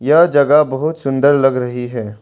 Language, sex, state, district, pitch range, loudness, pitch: Hindi, male, Arunachal Pradesh, Longding, 125-150 Hz, -14 LUFS, 135 Hz